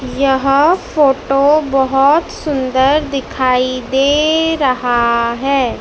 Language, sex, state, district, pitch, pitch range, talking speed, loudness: Hindi, male, Madhya Pradesh, Dhar, 275 Hz, 255-290 Hz, 85 wpm, -14 LUFS